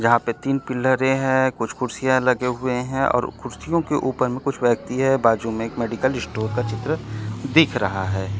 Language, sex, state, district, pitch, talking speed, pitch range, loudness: Chhattisgarhi, male, Chhattisgarh, Korba, 125 Hz, 200 wpm, 115-130 Hz, -22 LUFS